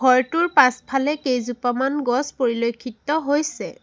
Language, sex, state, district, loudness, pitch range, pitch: Assamese, female, Assam, Sonitpur, -21 LUFS, 245-290 Hz, 260 Hz